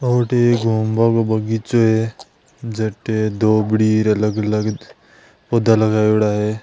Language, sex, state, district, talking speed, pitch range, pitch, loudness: Marwari, male, Rajasthan, Nagaur, 120 wpm, 110-115 Hz, 110 Hz, -17 LUFS